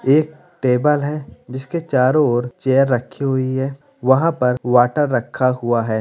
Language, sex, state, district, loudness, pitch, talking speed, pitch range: Hindi, male, Bihar, Gopalganj, -18 LUFS, 130 Hz, 160 wpm, 125-145 Hz